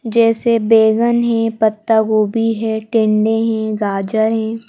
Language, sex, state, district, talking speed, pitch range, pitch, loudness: Hindi, female, Madhya Pradesh, Bhopal, 130 wpm, 220-225 Hz, 225 Hz, -15 LUFS